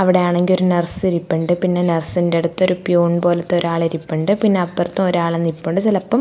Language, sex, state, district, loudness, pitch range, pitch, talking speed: Malayalam, female, Kerala, Thiruvananthapuram, -17 LUFS, 170-185 Hz, 175 Hz, 165 wpm